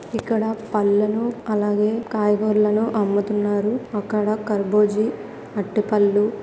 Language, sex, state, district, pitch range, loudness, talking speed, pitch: Telugu, female, Andhra Pradesh, Visakhapatnam, 205-220 Hz, -21 LUFS, 75 wpm, 210 Hz